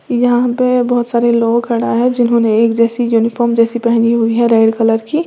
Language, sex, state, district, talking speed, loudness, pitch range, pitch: Hindi, female, Uttar Pradesh, Lalitpur, 205 wpm, -13 LUFS, 230-245 Hz, 235 Hz